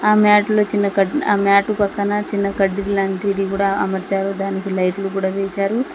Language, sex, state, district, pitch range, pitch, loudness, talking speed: Telugu, female, Telangana, Mahabubabad, 195-205 Hz, 200 Hz, -18 LUFS, 170 wpm